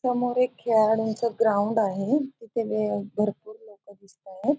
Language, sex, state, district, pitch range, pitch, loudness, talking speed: Marathi, female, Maharashtra, Aurangabad, 205-240 Hz, 220 Hz, -25 LUFS, 120 wpm